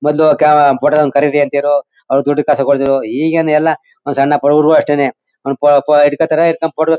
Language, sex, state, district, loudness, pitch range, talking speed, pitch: Kannada, male, Karnataka, Mysore, -12 LUFS, 140-155 Hz, 190 wpm, 145 Hz